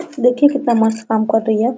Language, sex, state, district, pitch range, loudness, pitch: Hindi, female, Bihar, Araria, 220-255 Hz, -15 LUFS, 235 Hz